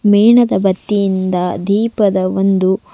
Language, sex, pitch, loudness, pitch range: Kannada, female, 195 Hz, -14 LUFS, 185-205 Hz